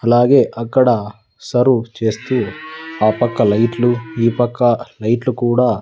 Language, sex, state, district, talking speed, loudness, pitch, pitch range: Telugu, male, Andhra Pradesh, Sri Satya Sai, 115 wpm, -16 LUFS, 120 Hz, 110-125 Hz